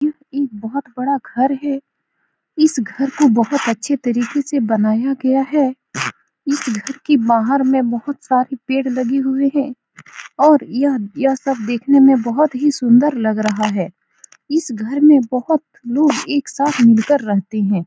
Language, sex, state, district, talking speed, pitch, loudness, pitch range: Hindi, female, Bihar, Saran, 165 wpm, 270 Hz, -16 LUFS, 240-285 Hz